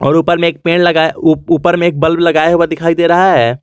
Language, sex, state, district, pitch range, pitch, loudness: Hindi, male, Jharkhand, Garhwa, 160-170 Hz, 165 Hz, -11 LUFS